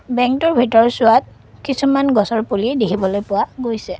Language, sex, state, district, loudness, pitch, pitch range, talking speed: Assamese, female, Assam, Kamrup Metropolitan, -16 LUFS, 230 Hz, 215-265 Hz, 120 wpm